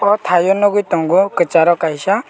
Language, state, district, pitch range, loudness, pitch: Kokborok, Tripura, West Tripura, 170-205 Hz, -14 LUFS, 185 Hz